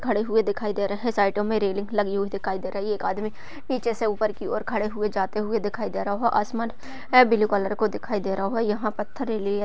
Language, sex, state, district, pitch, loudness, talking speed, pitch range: Hindi, female, Uttar Pradesh, Budaun, 210 Hz, -25 LUFS, 265 wpm, 200-225 Hz